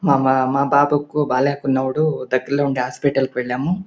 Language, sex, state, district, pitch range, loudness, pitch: Telugu, male, Andhra Pradesh, Anantapur, 130-145 Hz, -19 LUFS, 140 Hz